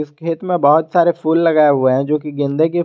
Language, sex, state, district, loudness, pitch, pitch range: Hindi, male, Jharkhand, Garhwa, -15 LUFS, 155 Hz, 145-165 Hz